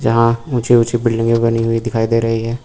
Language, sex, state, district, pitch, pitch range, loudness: Hindi, male, Uttar Pradesh, Lucknow, 115 Hz, 115-120 Hz, -15 LUFS